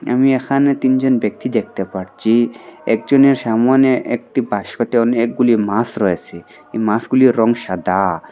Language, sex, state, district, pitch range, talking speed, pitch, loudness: Bengali, male, Assam, Hailakandi, 105-130 Hz, 120 wpm, 115 Hz, -16 LUFS